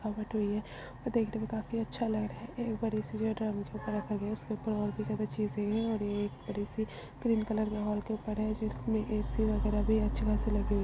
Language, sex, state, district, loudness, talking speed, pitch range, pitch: Hindi, female, Uttar Pradesh, Budaun, -34 LUFS, 180 wpm, 210-220 Hz, 215 Hz